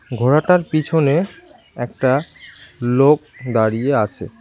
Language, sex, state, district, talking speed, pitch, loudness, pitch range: Bengali, male, West Bengal, Cooch Behar, 80 wpm, 135 Hz, -17 LUFS, 120-155 Hz